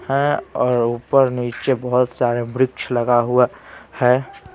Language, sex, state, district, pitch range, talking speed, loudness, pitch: Hindi, male, Bihar, Patna, 120-130 Hz, 130 wpm, -19 LUFS, 125 Hz